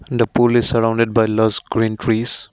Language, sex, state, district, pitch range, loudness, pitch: English, male, Assam, Kamrup Metropolitan, 110-120 Hz, -16 LUFS, 115 Hz